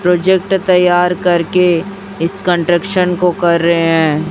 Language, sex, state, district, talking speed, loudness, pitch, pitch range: Hindi, female, Chhattisgarh, Raipur, 140 wpm, -13 LUFS, 180 Hz, 170-185 Hz